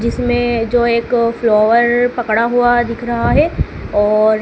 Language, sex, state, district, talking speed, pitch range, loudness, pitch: Hindi, female, Madhya Pradesh, Dhar, 135 wpm, 225-240 Hz, -14 LUFS, 235 Hz